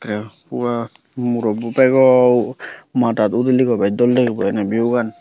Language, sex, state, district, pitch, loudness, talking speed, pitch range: Chakma, female, Tripura, Unakoti, 120 Hz, -17 LUFS, 140 wpm, 115-125 Hz